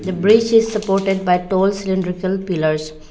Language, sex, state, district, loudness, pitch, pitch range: English, female, Arunachal Pradesh, Lower Dibang Valley, -17 LUFS, 190 Hz, 180-195 Hz